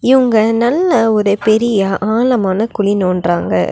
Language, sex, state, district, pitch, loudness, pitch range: Tamil, female, Tamil Nadu, Nilgiris, 215 Hz, -13 LUFS, 195-230 Hz